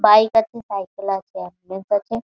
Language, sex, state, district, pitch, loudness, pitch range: Bengali, female, West Bengal, Malda, 205 Hz, -20 LUFS, 195-225 Hz